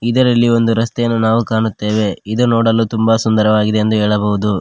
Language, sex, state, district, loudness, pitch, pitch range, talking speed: Kannada, male, Karnataka, Koppal, -14 LUFS, 110 Hz, 105-115 Hz, 145 wpm